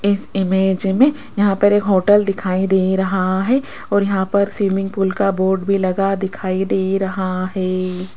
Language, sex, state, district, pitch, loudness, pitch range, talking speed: Hindi, female, Rajasthan, Jaipur, 195 Hz, -17 LUFS, 190-200 Hz, 175 wpm